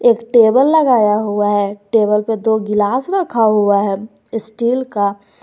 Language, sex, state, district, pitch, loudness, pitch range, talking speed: Hindi, female, Jharkhand, Garhwa, 220 Hz, -15 LUFS, 205-240 Hz, 155 wpm